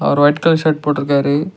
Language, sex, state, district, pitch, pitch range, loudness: Tamil, male, Tamil Nadu, Nilgiris, 150 Hz, 145-160 Hz, -15 LUFS